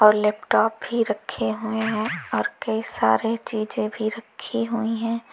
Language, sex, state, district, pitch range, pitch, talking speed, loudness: Hindi, female, Uttar Pradesh, Lalitpur, 215-230 Hz, 220 Hz, 155 wpm, -24 LUFS